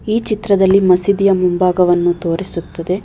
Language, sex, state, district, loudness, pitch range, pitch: Kannada, female, Karnataka, Bangalore, -14 LUFS, 175-200 Hz, 185 Hz